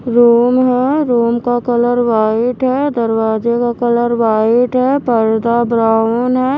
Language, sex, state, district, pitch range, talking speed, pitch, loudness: Hindi, female, Haryana, Charkhi Dadri, 230-250 Hz, 135 wpm, 240 Hz, -13 LUFS